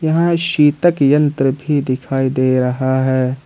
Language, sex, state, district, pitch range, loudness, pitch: Hindi, male, Jharkhand, Ranchi, 130-150 Hz, -15 LUFS, 135 Hz